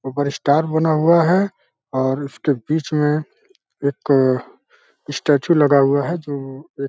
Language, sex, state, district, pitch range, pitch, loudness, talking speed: Hindi, male, Uttar Pradesh, Deoria, 140-160 Hz, 145 Hz, -18 LUFS, 155 wpm